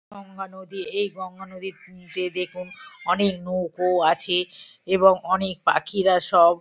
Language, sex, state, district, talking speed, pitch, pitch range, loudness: Bengali, female, West Bengal, Kolkata, 145 wpm, 185 Hz, 180-190 Hz, -22 LUFS